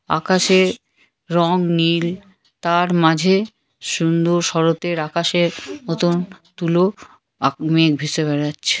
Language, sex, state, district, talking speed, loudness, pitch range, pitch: Bengali, female, West Bengal, Kolkata, 80 wpm, -18 LUFS, 160-180 Hz, 170 Hz